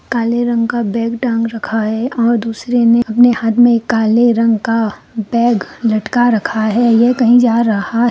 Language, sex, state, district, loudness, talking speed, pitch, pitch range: Hindi, female, Bihar, Begusarai, -13 LUFS, 180 wpm, 230 Hz, 225-240 Hz